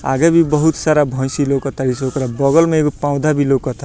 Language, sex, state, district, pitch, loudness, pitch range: Bhojpuri, male, Bihar, Muzaffarpur, 140 Hz, -15 LUFS, 135-155 Hz